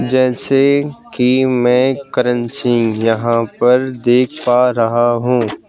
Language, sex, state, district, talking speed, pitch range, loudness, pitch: Hindi, male, Madhya Pradesh, Bhopal, 115 wpm, 120-130 Hz, -14 LUFS, 125 Hz